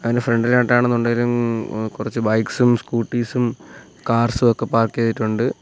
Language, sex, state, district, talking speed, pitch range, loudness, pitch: Malayalam, male, Kerala, Kollam, 105 wpm, 115-120 Hz, -19 LUFS, 115 Hz